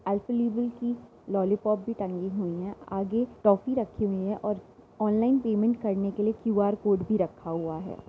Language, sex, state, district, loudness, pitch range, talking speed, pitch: Hindi, female, Uttar Pradesh, Jyotiba Phule Nagar, -28 LUFS, 195-225 Hz, 185 wpm, 205 Hz